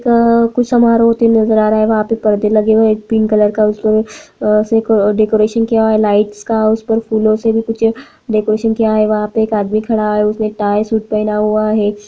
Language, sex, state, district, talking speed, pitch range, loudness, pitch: Hindi, female, Uttarakhand, Tehri Garhwal, 235 wpm, 215-225 Hz, -13 LUFS, 215 Hz